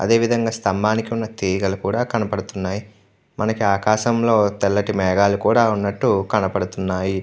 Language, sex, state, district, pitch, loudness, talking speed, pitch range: Telugu, male, Andhra Pradesh, Krishna, 105 Hz, -20 LUFS, 115 wpm, 100-110 Hz